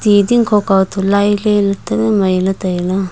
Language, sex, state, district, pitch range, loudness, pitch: Wancho, female, Arunachal Pradesh, Longding, 185-205 Hz, -14 LUFS, 195 Hz